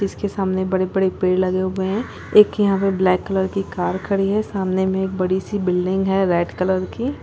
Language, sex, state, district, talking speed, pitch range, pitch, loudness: Hindi, female, Chhattisgarh, Bilaspur, 225 wpm, 185-195 Hz, 190 Hz, -20 LUFS